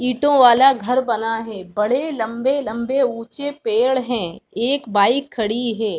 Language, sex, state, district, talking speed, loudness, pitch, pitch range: Hindi, female, Chhattisgarh, Balrampur, 140 wpm, -19 LUFS, 245 Hz, 225-270 Hz